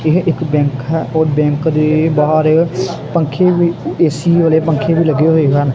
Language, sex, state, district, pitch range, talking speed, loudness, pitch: Punjabi, male, Punjab, Kapurthala, 150-165 Hz, 175 wpm, -13 LUFS, 160 Hz